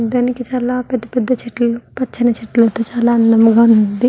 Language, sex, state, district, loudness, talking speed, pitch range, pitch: Telugu, female, Andhra Pradesh, Guntur, -15 LUFS, 145 wpm, 230-250 Hz, 235 Hz